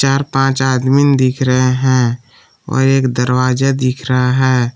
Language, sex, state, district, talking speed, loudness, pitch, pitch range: Hindi, male, Jharkhand, Palamu, 150 wpm, -14 LUFS, 130 Hz, 125-135 Hz